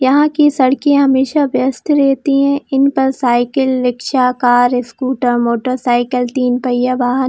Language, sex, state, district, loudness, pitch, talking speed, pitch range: Hindi, female, Jharkhand, Jamtara, -14 LUFS, 260 Hz, 155 wpm, 245-275 Hz